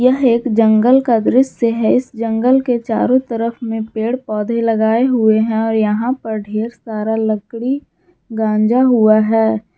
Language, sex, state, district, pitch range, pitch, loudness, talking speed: Hindi, female, Jharkhand, Garhwa, 220-245 Hz, 230 Hz, -15 LUFS, 160 wpm